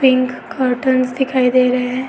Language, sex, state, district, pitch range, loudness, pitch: Hindi, female, Uttar Pradesh, Etah, 250-260 Hz, -16 LUFS, 255 Hz